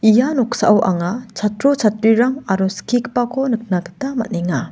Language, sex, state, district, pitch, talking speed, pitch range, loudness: Garo, female, Meghalaya, West Garo Hills, 225 Hz, 125 wpm, 200-245 Hz, -17 LUFS